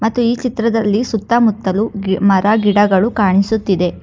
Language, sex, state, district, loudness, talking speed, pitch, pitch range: Kannada, female, Karnataka, Bangalore, -14 LUFS, 120 wpm, 210 Hz, 195-230 Hz